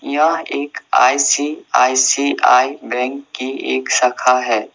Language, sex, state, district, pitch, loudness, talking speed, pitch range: Hindi, male, Assam, Sonitpur, 130 Hz, -15 LUFS, 100 wpm, 125-140 Hz